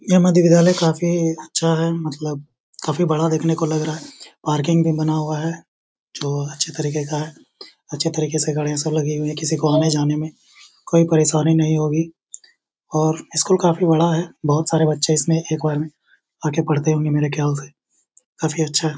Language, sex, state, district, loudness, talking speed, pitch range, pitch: Hindi, male, Bihar, Bhagalpur, -19 LUFS, 170 wpm, 150-165 Hz, 155 Hz